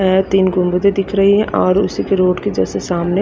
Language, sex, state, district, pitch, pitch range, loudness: Hindi, female, Haryana, Rohtak, 190 Hz, 180-195 Hz, -15 LUFS